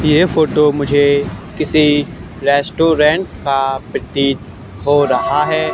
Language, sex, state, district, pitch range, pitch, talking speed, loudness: Hindi, male, Haryana, Charkhi Dadri, 135-150 Hz, 145 Hz, 105 wpm, -15 LUFS